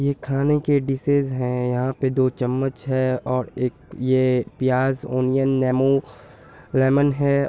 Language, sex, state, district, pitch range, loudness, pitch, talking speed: Hindi, male, Bihar, Purnia, 130-140 Hz, -21 LUFS, 130 Hz, 145 wpm